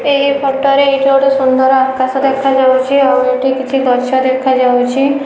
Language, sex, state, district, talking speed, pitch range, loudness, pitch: Odia, female, Odisha, Malkangiri, 170 wpm, 260-275 Hz, -11 LUFS, 265 Hz